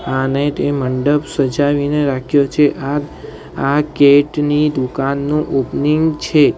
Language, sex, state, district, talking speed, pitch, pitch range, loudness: Gujarati, male, Gujarat, Valsad, 110 wpm, 145 Hz, 135-150 Hz, -15 LUFS